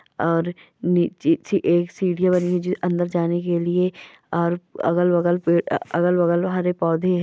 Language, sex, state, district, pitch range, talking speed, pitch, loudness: Hindi, female, Goa, North and South Goa, 170-180 Hz, 165 wpm, 175 Hz, -21 LUFS